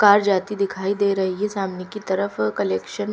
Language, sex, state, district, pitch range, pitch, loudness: Hindi, female, Chhattisgarh, Raipur, 185-205 Hz, 195 Hz, -22 LUFS